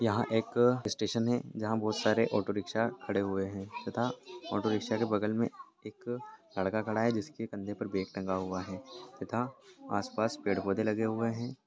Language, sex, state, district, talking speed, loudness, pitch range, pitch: Hindi, male, Chhattisgarh, Bilaspur, 170 wpm, -33 LUFS, 100-115 Hz, 110 Hz